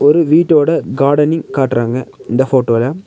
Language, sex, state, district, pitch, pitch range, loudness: Tamil, male, Tamil Nadu, Nilgiris, 135 Hz, 125-150 Hz, -13 LUFS